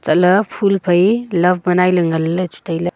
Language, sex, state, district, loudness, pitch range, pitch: Wancho, female, Arunachal Pradesh, Longding, -15 LUFS, 175-190 Hz, 180 Hz